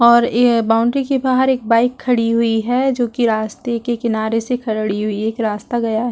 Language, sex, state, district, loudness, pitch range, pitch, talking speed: Hindi, female, Chhattisgarh, Balrampur, -17 LUFS, 225-245 Hz, 235 Hz, 215 wpm